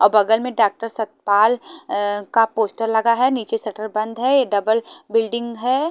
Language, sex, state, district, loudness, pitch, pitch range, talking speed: Hindi, female, Haryana, Charkhi Dadri, -19 LUFS, 225 Hz, 215-235 Hz, 160 wpm